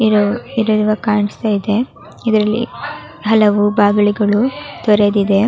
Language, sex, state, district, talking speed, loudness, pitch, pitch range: Kannada, female, Karnataka, Raichur, 100 wpm, -15 LUFS, 210 Hz, 205-220 Hz